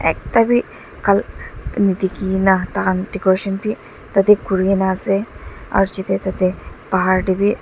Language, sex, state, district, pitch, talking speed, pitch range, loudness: Nagamese, female, Nagaland, Dimapur, 195 Hz, 140 wpm, 190-200 Hz, -18 LUFS